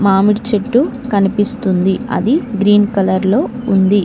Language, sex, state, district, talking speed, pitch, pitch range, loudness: Telugu, female, Telangana, Mahabubabad, 120 wpm, 205 Hz, 195-235 Hz, -14 LUFS